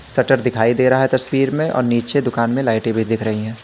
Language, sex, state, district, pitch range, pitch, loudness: Hindi, male, Uttar Pradesh, Lalitpur, 115-135 Hz, 125 Hz, -17 LUFS